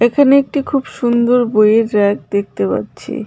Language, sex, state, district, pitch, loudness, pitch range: Bengali, female, West Bengal, Cooch Behar, 240 Hz, -14 LUFS, 210-275 Hz